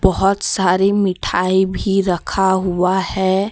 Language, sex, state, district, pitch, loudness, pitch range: Hindi, female, Jharkhand, Deoghar, 190 Hz, -17 LUFS, 185-195 Hz